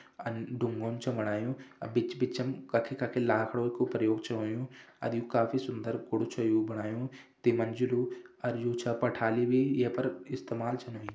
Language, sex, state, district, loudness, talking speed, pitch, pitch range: Hindi, male, Uttarakhand, Uttarkashi, -32 LUFS, 185 wpm, 120 Hz, 115-125 Hz